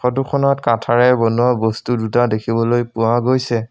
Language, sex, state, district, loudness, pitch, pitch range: Assamese, male, Assam, Sonitpur, -16 LUFS, 120 Hz, 115-125 Hz